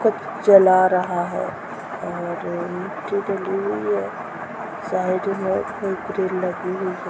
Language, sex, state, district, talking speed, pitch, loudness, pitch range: Hindi, female, Bihar, Purnia, 135 wpm, 185 Hz, -22 LUFS, 180-195 Hz